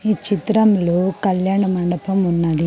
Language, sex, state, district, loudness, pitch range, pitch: Telugu, female, Andhra Pradesh, Sri Satya Sai, -17 LUFS, 175-200 Hz, 190 Hz